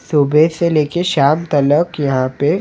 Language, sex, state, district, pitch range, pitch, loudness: Hindi, male, Maharashtra, Mumbai Suburban, 140-170 Hz, 150 Hz, -15 LUFS